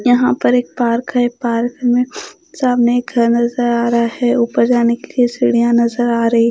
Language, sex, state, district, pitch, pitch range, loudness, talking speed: Hindi, female, Bihar, Katihar, 240 Hz, 235-245 Hz, -15 LUFS, 205 wpm